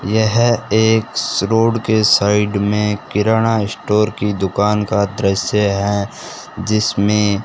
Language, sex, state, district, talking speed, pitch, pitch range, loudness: Hindi, male, Rajasthan, Bikaner, 120 wpm, 105 Hz, 100-110 Hz, -16 LUFS